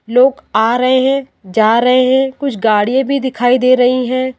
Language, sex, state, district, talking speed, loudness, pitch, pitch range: Hindi, female, Rajasthan, Jaipur, 190 wpm, -13 LUFS, 255 Hz, 235-260 Hz